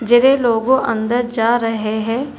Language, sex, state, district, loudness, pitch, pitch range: Hindi, female, Telangana, Hyderabad, -16 LUFS, 235 Hz, 225-245 Hz